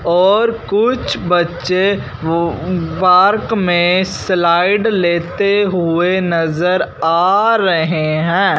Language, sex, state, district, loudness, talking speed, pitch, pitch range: Hindi, male, Punjab, Fazilka, -14 LUFS, 90 wpm, 180 Hz, 170-195 Hz